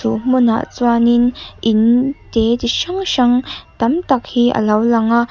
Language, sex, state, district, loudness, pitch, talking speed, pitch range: Mizo, female, Mizoram, Aizawl, -15 LUFS, 240 Hz, 160 wpm, 230-255 Hz